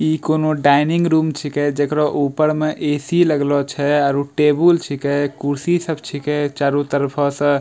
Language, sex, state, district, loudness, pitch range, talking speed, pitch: Angika, male, Bihar, Bhagalpur, -18 LUFS, 140-155 Hz, 160 wpm, 145 Hz